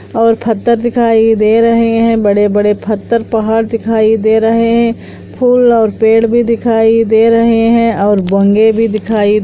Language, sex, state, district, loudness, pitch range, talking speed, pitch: Hindi, female, Andhra Pradesh, Anantapur, -10 LUFS, 220-230 Hz, 145 wpm, 225 Hz